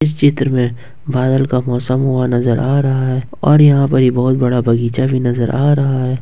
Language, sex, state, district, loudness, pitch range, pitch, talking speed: Hindi, male, Jharkhand, Ranchi, -14 LUFS, 125-135 Hz, 130 Hz, 205 wpm